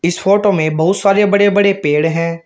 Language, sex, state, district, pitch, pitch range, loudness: Hindi, male, Uttar Pradesh, Shamli, 190 Hz, 165-200 Hz, -13 LUFS